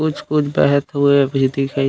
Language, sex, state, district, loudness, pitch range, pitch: Chhattisgarhi, male, Chhattisgarh, Raigarh, -16 LUFS, 135-150 Hz, 140 Hz